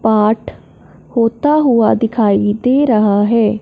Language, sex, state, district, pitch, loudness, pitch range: Hindi, male, Punjab, Fazilka, 225 Hz, -13 LUFS, 210-240 Hz